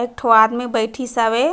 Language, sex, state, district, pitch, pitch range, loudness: Chhattisgarhi, female, Chhattisgarh, Raigarh, 230 Hz, 225-245 Hz, -17 LUFS